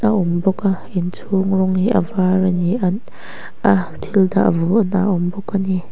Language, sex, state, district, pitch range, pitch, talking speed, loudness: Mizo, female, Mizoram, Aizawl, 185-195 Hz, 190 Hz, 215 wpm, -18 LUFS